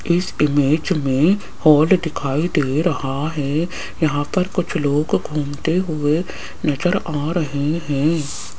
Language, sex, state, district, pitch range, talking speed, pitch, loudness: Hindi, female, Rajasthan, Jaipur, 145-170 Hz, 125 wpm, 155 Hz, -19 LUFS